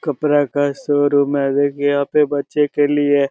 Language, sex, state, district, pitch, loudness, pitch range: Maithili, male, Bihar, Begusarai, 145 Hz, -17 LUFS, 140-145 Hz